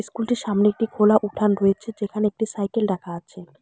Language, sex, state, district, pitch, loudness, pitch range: Bengali, female, West Bengal, Alipurduar, 210 Hz, -22 LUFS, 200-220 Hz